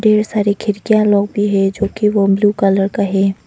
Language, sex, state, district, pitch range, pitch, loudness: Hindi, female, Arunachal Pradesh, Longding, 195-210 Hz, 205 Hz, -15 LUFS